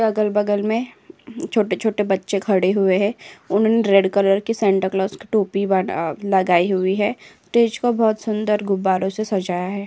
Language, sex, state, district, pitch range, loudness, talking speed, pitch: Hindi, female, Uttar Pradesh, Jyotiba Phule Nagar, 190-215 Hz, -19 LUFS, 170 wpm, 200 Hz